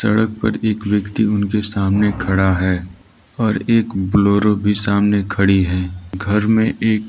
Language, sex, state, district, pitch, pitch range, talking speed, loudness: Hindi, male, Arunachal Pradesh, Lower Dibang Valley, 100 Hz, 95-105 Hz, 150 wpm, -17 LUFS